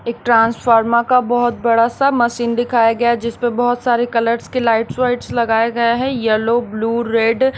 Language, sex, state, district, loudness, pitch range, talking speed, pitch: Hindi, female, Maharashtra, Washim, -16 LUFS, 230-245 Hz, 190 wpm, 235 Hz